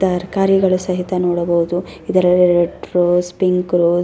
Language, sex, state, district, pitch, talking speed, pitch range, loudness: Kannada, female, Karnataka, Raichur, 180 Hz, 135 wpm, 175-185 Hz, -16 LUFS